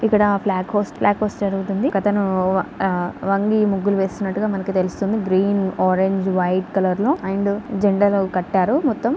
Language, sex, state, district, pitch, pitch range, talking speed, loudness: Telugu, female, Telangana, Karimnagar, 195 Hz, 190-205 Hz, 125 wpm, -20 LUFS